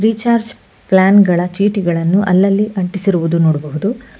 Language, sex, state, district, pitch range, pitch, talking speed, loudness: Kannada, female, Karnataka, Bangalore, 175-210 Hz, 195 Hz, 100 wpm, -14 LUFS